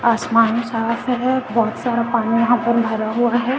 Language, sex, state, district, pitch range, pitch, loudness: Hindi, female, Chhattisgarh, Raipur, 230-240 Hz, 235 Hz, -18 LUFS